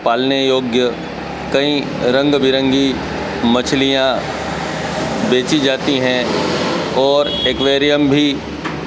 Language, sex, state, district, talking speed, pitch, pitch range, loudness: Hindi, male, Madhya Pradesh, Dhar, 80 wpm, 135 Hz, 130-140 Hz, -15 LUFS